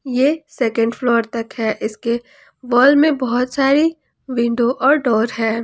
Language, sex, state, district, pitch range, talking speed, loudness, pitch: Hindi, female, Jharkhand, Ranchi, 230-275 Hz, 150 wpm, -17 LUFS, 245 Hz